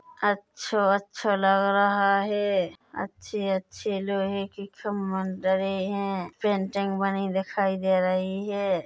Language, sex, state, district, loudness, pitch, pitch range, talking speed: Hindi, female, Chhattisgarh, Bilaspur, -26 LUFS, 195 Hz, 190-200 Hz, 115 wpm